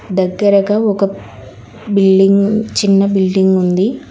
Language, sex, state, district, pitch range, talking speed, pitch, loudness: Telugu, female, Telangana, Hyderabad, 185-200 Hz, 85 wpm, 195 Hz, -13 LUFS